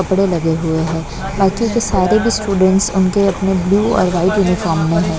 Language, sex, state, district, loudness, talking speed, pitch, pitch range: Hindi, female, Maharashtra, Mumbai Suburban, -15 LUFS, 195 wpm, 190 Hz, 170-200 Hz